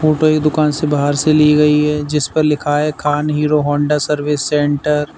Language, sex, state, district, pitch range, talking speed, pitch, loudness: Hindi, male, Uttar Pradesh, Lalitpur, 145-150 Hz, 220 wpm, 150 Hz, -15 LUFS